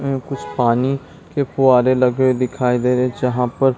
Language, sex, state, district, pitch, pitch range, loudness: Hindi, male, Chhattisgarh, Bilaspur, 130 Hz, 125-135 Hz, -18 LUFS